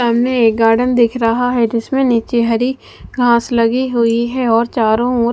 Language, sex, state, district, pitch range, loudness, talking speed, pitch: Hindi, female, Punjab, Fazilka, 230-245 Hz, -14 LUFS, 180 wpm, 235 Hz